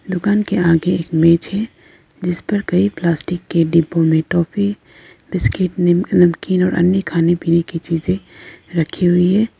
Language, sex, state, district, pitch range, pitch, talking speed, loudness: Hindi, female, Arunachal Pradesh, Lower Dibang Valley, 170-190 Hz, 175 Hz, 155 wpm, -16 LUFS